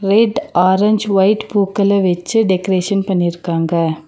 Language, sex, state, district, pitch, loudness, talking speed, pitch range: Tamil, female, Tamil Nadu, Nilgiris, 190 Hz, -15 LUFS, 105 wpm, 175-200 Hz